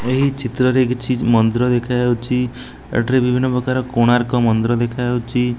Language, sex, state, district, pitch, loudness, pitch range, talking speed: Odia, male, Odisha, Nuapada, 125 Hz, -17 LUFS, 120-125 Hz, 120 wpm